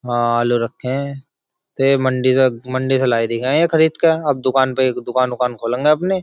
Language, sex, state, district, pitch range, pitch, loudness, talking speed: Hindi, male, Uttar Pradesh, Jyotiba Phule Nagar, 125-140 Hz, 130 Hz, -17 LUFS, 200 wpm